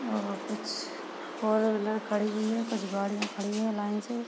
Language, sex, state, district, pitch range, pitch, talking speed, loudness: Hindi, female, Uttar Pradesh, Hamirpur, 205-220 Hz, 215 Hz, 195 wpm, -31 LUFS